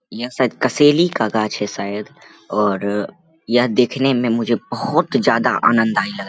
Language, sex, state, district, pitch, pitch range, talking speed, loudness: Hindi, male, Bihar, Begusarai, 120 Hz, 105-135 Hz, 160 wpm, -18 LUFS